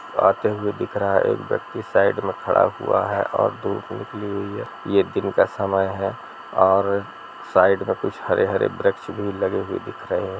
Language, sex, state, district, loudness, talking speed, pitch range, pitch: Hindi, male, Bihar, Sitamarhi, -22 LUFS, 185 wpm, 95-100 Hz, 100 Hz